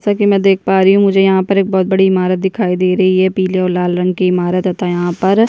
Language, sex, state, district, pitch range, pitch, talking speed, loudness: Hindi, female, Chhattisgarh, Bastar, 185-195 Hz, 190 Hz, 285 wpm, -13 LUFS